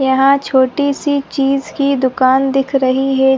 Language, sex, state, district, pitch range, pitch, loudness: Hindi, female, Chhattisgarh, Sarguja, 265-280 Hz, 270 Hz, -14 LUFS